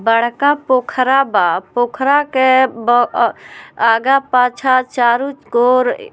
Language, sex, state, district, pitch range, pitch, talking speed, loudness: Bhojpuri, female, Bihar, Muzaffarpur, 240-270 Hz, 255 Hz, 115 wpm, -14 LUFS